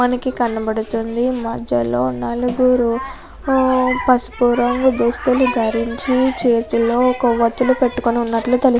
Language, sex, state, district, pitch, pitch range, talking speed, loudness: Telugu, female, Andhra Pradesh, Chittoor, 245 Hz, 230-255 Hz, 95 wpm, -17 LUFS